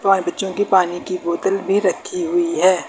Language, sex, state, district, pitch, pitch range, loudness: Hindi, female, Uttar Pradesh, Lucknow, 190 Hz, 180-205 Hz, -19 LUFS